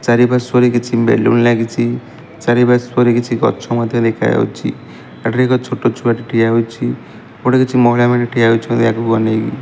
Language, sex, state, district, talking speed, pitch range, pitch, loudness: Odia, male, Odisha, Malkangiri, 150 wpm, 115-125 Hz, 120 Hz, -14 LUFS